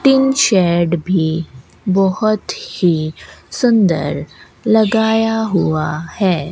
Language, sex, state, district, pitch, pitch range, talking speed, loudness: Hindi, female, Rajasthan, Bikaner, 185 Hz, 165-220 Hz, 85 wpm, -16 LUFS